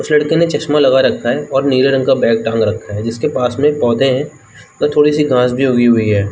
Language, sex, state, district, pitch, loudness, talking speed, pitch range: Hindi, male, Jharkhand, Jamtara, 130 Hz, -13 LUFS, 265 wpm, 115-150 Hz